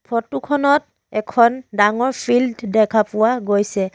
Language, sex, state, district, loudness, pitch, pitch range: Assamese, female, Assam, Sonitpur, -18 LUFS, 230 Hz, 210-250 Hz